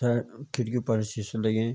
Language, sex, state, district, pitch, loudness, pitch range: Garhwali, male, Uttarakhand, Tehri Garhwal, 115 Hz, -29 LUFS, 110-125 Hz